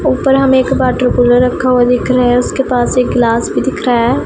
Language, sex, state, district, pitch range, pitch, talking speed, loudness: Hindi, female, Punjab, Pathankot, 245-260 Hz, 250 Hz, 255 wpm, -12 LUFS